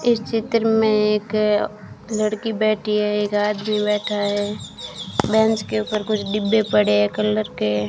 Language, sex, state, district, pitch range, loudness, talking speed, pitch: Hindi, female, Rajasthan, Bikaner, 205-215 Hz, -20 LUFS, 150 wpm, 210 Hz